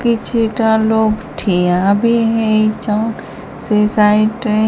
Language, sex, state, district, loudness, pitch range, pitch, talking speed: Odia, female, Odisha, Sambalpur, -14 LUFS, 210-225 Hz, 220 Hz, 100 wpm